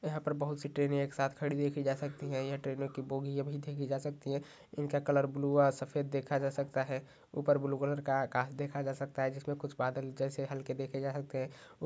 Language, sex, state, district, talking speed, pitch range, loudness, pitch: Hindi, male, Maharashtra, Nagpur, 245 wpm, 135-145 Hz, -36 LUFS, 140 Hz